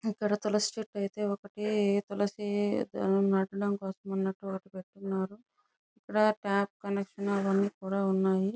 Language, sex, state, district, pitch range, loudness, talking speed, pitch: Telugu, female, Andhra Pradesh, Chittoor, 195-205 Hz, -31 LUFS, 125 wpm, 200 Hz